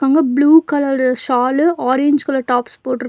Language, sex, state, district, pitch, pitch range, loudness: Tamil, female, Tamil Nadu, Nilgiris, 270 Hz, 255-290 Hz, -15 LUFS